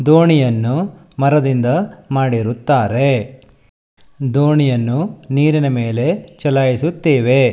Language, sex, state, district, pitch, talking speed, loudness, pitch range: Kannada, male, Karnataka, Shimoga, 135 Hz, 55 wpm, -16 LUFS, 125-150 Hz